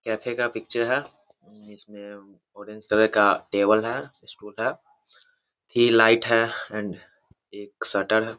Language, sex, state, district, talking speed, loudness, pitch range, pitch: Hindi, male, Bihar, Muzaffarpur, 130 wpm, -22 LUFS, 105-115 Hz, 110 Hz